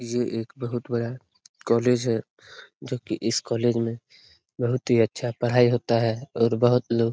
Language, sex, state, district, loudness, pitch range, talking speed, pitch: Hindi, male, Bihar, Lakhisarai, -24 LUFS, 115-120 Hz, 175 wpm, 120 Hz